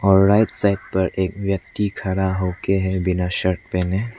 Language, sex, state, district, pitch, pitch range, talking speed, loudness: Hindi, male, Arunachal Pradesh, Lower Dibang Valley, 95 Hz, 95-100 Hz, 170 wpm, -19 LUFS